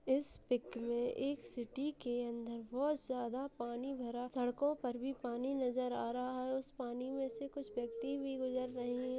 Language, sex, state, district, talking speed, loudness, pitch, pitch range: Hindi, female, Bihar, Purnia, 190 wpm, -40 LUFS, 255 Hz, 245-270 Hz